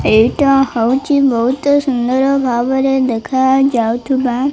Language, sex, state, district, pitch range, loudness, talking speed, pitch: Odia, female, Odisha, Malkangiri, 240-275 Hz, -14 LUFS, 120 wpm, 265 Hz